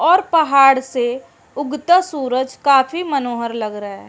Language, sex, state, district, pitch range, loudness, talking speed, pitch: Hindi, female, Uttarakhand, Uttarkashi, 245-300 Hz, -16 LUFS, 145 wpm, 270 Hz